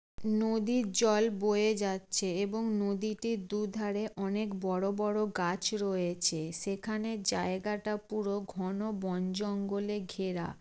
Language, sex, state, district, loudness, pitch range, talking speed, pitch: Bengali, female, West Bengal, Jalpaiguri, -33 LUFS, 190-215 Hz, 115 wpm, 205 Hz